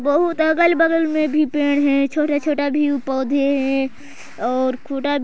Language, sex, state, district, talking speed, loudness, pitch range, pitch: Hindi, male, Chhattisgarh, Sarguja, 160 wpm, -19 LUFS, 275-305 Hz, 285 Hz